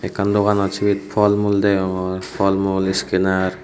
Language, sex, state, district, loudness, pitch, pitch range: Chakma, male, Tripura, Unakoti, -19 LUFS, 95 Hz, 95-100 Hz